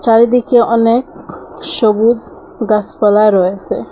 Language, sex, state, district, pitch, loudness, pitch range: Bengali, female, Assam, Hailakandi, 230 Hz, -12 LUFS, 215-245 Hz